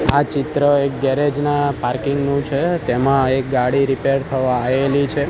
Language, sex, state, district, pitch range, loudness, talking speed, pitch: Gujarati, male, Gujarat, Gandhinagar, 135-145 Hz, -18 LUFS, 170 wpm, 140 Hz